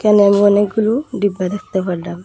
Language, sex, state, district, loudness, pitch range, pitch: Bengali, female, Assam, Hailakandi, -15 LUFS, 185-210 Hz, 205 Hz